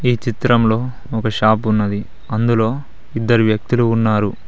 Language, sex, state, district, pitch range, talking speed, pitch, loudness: Telugu, male, Telangana, Mahabubabad, 110-120 Hz, 120 wpm, 115 Hz, -17 LUFS